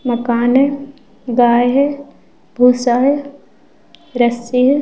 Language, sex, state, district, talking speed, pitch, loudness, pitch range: Hindi, female, Bihar, Vaishali, 110 wpm, 250 Hz, -14 LUFS, 240-280 Hz